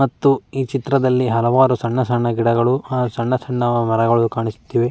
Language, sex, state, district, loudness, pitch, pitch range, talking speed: Kannada, male, Karnataka, Mysore, -18 LUFS, 120 Hz, 115-130 Hz, 145 wpm